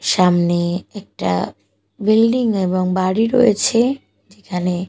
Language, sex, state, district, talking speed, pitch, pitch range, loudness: Bengali, female, Odisha, Malkangiri, 85 wpm, 195 Hz, 180-230 Hz, -17 LUFS